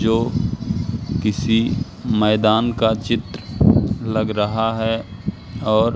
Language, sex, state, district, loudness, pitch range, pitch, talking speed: Hindi, male, Madhya Pradesh, Katni, -20 LUFS, 105-115 Hz, 110 Hz, 90 wpm